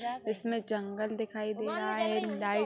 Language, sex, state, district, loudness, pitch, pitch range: Hindi, female, Uttar Pradesh, Hamirpur, -32 LUFS, 215 Hz, 215-220 Hz